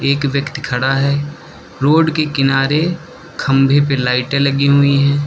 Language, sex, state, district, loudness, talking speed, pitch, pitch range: Hindi, male, Uttar Pradesh, Lucknow, -15 LUFS, 150 wpm, 140 Hz, 135-145 Hz